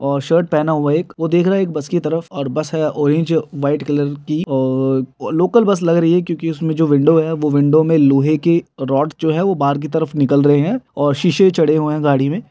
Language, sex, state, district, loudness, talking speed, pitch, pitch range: Hindi, male, Bihar, Muzaffarpur, -16 LUFS, 255 wpm, 155 Hz, 145-165 Hz